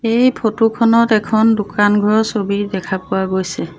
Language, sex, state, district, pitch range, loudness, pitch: Assamese, female, Assam, Sonitpur, 200-225 Hz, -15 LUFS, 210 Hz